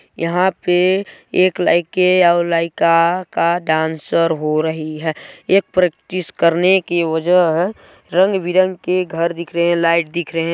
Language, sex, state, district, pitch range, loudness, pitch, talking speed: Hindi, male, Chhattisgarh, Balrampur, 165-185 Hz, -16 LUFS, 170 Hz, 150 wpm